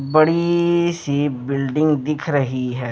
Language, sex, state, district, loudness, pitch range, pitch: Hindi, male, Bihar, Patna, -19 LUFS, 135-160 Hz, 145 Hz